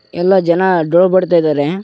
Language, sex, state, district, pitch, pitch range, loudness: Kannada, male, Karnataka, Koppal, 175 Hz, 170-185 Hz, -12 LUFS